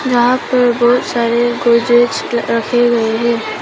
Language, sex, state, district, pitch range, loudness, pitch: Hindi, female, Arunachal Pradesh, Papum Pare, 235-240 Hz, -13 LUFS, 240 Hz